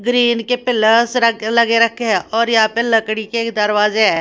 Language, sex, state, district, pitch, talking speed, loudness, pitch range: Hindi, female, Haryana, Rohtak, 230 Hz, 200 wpm, -15 LUFS, 220-235 Hz